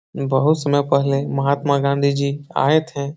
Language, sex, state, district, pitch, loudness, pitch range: Hindi, male, Bihar, Supaul, 140 Hz, -19 LUFS, 140-145 Hz